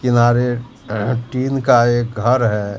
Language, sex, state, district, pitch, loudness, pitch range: Hindi, male, Bihar, Katihar, 120 Hz, -17 LUFS, 115-125 Hz